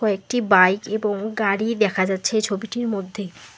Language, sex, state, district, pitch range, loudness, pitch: Bengali, female, West Bengal, Alipurduar, 195-220 Hz, -21 LUFS, 205 Hz